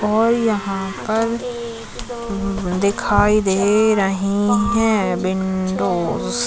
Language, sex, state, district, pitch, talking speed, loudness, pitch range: Hindi, female, Chhattisgarh, Raigarh, 200 Hz, 85 wpm, -19 LUFS, 190-225 Hz